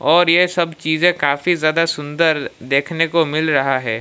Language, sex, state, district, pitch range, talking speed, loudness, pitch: Hindi, male, Odisha, Malkangiri, 145-170 Hz, 180 wpm, -17 LUFS, 160 Hz